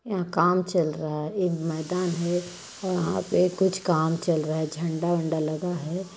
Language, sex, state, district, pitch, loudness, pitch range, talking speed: Hindi, female, Chhattisgarh, Jashpur, 175 Hz, -26 LUFS, 160-180 Hz, 185 wpm